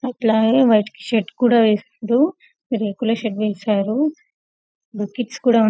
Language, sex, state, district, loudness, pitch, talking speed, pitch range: Telugu, female, Telangana, Karimnagar, -19 LUFS, 225 Hz, 105 wpm, 215-245 Hz